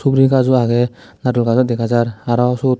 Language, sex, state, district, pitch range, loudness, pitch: Chakma, male, Tripura, Dhalai, 120-130 Hz, -16 LUFS, 125 Hz